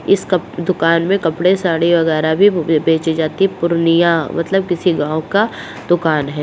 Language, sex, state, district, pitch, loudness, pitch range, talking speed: Hindi, female, Bihar, Purnia, 170 Hz, -15 LUFS, 160-180 Hz, 170 wpm